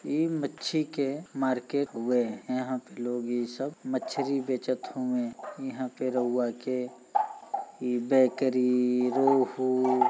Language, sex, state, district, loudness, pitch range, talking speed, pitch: Bhojpuri, male, Uttar Pradesh, Gorakhpur, -29 LUFS, 125-140 Hz, 125 wpm, 130 Hz